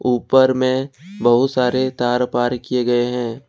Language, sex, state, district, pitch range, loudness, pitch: Hindi, male, Jharkhand, Ranchi, 120-130 Hz, -18 LUFS, 125 Hz